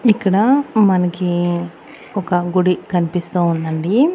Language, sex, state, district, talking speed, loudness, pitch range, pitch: Telugu, female, Andhra Pradesh, Annamaya, 85 wpm, -17 LUFS, 175-210 Hz, 180 Hz